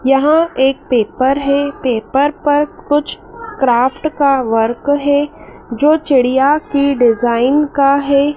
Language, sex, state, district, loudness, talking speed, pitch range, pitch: Hindi, female, Madhya Pradesh, Dhar, -14 LUFS, 120 wpm, 260-295 Hz, 280 Hz